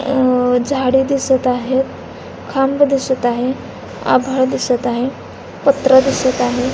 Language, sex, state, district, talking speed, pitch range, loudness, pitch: Marathi, female, Maharashtra, Dhule, 115 wpm, 250-270 Hz, -16 LUFS, 260 Hz